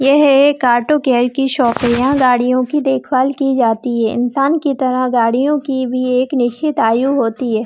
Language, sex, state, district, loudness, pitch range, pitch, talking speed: Hindi, female, Chhattisgarh, Bilaspur, -14 LUFS, 245-275 Hz, 255 Hz, 195 wpm